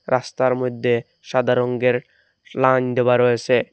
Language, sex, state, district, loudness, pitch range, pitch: Bengali, male, Assam, Hailakandi, -20 LUFS, 125-130 Hz, 125 Hz